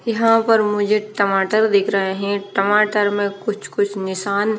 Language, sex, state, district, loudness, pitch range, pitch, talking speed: Hindi, female, Haryana, Rohtak, -18 LUFS, 200-215 Hz, 205 Hz, 155 wpm